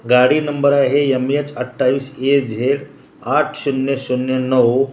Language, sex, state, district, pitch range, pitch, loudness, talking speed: Marathi, male, Maharashtra, Washim, 130-140 Hz, 135 Hz, -17 LUFS, 160 wpm